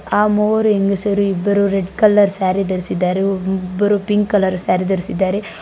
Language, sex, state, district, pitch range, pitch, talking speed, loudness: Kannada, female, Karnataka, Bangalore, 190-205 Hz, 195 Hz, 150 wpm, -16 LUFS